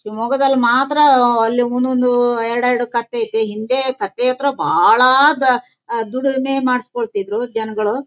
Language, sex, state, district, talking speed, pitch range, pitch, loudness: Kannada, female, Karnataka, Shimoga, 135 wpm, 235-275 Hz, 250 Hz, -16 LUFS